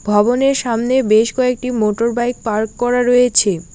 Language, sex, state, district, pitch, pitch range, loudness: Bengali, female, West Bengal, Alipurduar, 240 Hz, 215-250 Hz, -15 LUFS